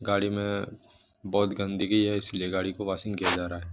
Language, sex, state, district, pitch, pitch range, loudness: Hindi, male, Jharkhand, Jamtara, 100 Hz, 95-100 Hz, -28 LUFS